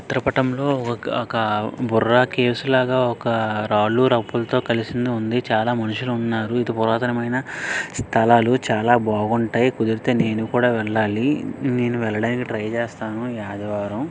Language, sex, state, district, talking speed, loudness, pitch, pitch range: Telugu, male, Andhra Pradesh, Srikakulam, 130 wpm, -21 LUFS, 120 Hz, 110-125 Hz